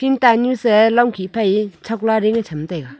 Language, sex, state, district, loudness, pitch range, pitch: Wancho, female, Arunachal Pradesh, Longding, -16 LUFS, 195-235 Hz, 220 Hz